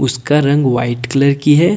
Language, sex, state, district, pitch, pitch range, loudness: Hindi, male, Jharkhand, Deoghar, 140 Hz, 125-150 Hz, -13 LUFS